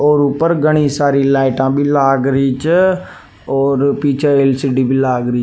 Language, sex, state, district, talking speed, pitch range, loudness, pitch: Rajasthani, male, Rajasthan, Nagaur, 155 wpm, 135-145 Hz, -14 LUFS, 140 Hz